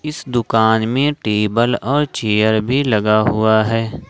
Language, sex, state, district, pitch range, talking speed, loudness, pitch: Hindi, male, Jharkhand, Ranchi, 110-130 Hz, 160 wpm, -16 LUFS, 115 Hz